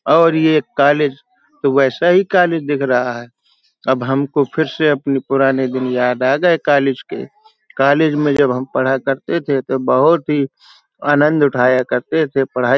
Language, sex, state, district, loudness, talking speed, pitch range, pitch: Hindi, male, Uttar Pradesh, Hamirpur, -15 LUFS, 180 wpm, 130-155 Hz, 140 Hz